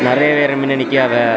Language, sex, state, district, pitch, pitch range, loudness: Tamil, male, Tamil Nadu, Kanyakumari, 135 Hz, 130-145 Hz, -14 LUFS